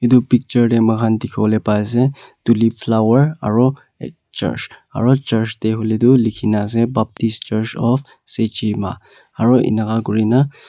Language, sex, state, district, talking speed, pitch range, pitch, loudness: Nagamese, male, Nagaland, Kohima, 145 wpm, 110-125 Hz, 115 Hz, -17 LUFS